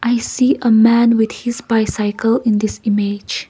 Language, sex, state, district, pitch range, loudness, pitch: English, female, Nagaland, Kohima, 215-235 Hz, -15 LUFS, 230 Hz